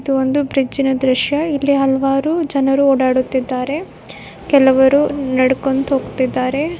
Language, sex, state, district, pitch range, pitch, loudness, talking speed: Kannada, female, Karnataka, Koppal, 260-285 Hz, 270 Hz, -16 LUFS, 105 wpm